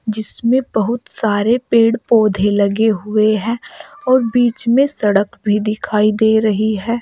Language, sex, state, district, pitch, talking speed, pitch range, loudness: Hindi, female, Uttar Pradesh, Saharanpur, 220 Hz, 145 wpm, 215-235 Hz, -15 LUFS